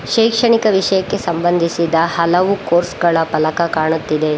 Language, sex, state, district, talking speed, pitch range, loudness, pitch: Kannada, female, Karnataka, Bangalore, 110 wpm, 165-190 Hz, -15 LUFS, 170 Hz